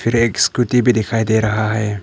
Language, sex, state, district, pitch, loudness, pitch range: Hindi, male, Arunachal Pradesh, Papum Pare, 110 Hz, -16 LUFS, 110-120 Hz